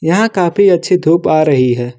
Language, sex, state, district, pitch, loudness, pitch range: Hindi, male, Jharkhand, Ranchi, 170 Hz, -12 LUFS, 145-180 Hz